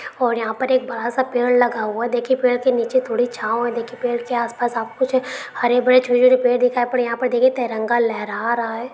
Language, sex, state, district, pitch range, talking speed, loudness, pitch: Maithili, female, Bihar, Supaul, 235-255 Hz, 250 wpm, -19 LUFS, 245 Hz